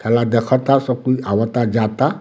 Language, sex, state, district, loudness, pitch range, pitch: Bhojpuri, male, Bihar, Muzaffarpur, -17 LUFS, 115-130 Hz, 120 Hz